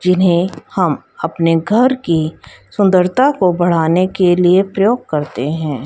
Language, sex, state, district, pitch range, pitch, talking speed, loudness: Hindi, female, Haryana, Jhajjar, 165-190 Hz, 180 Hz, 135 wpm, -14 LUFS